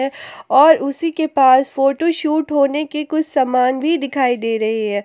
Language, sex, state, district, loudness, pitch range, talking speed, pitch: Hindi, female, Jharkhand, Palamu, -16 LUFS, 260-310 Hz, 180 wpm, 275 Hz